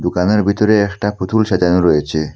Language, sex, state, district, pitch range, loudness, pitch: Bengali, male, Assam, Hailakandi, 90-105 Hz, -15 LUFS, 95 Hz